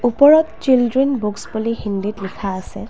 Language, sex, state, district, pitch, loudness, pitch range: Assamese, female, Assam, Kamrup Metropolitan, 230 Hz, -17 LUFS, 205-265 Hz